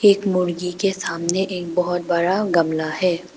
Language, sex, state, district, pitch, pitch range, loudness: Hindi, female, Arunachal Pradesh, Papum Pare, 180 Hz, 170-185 Hz, -21 LUFS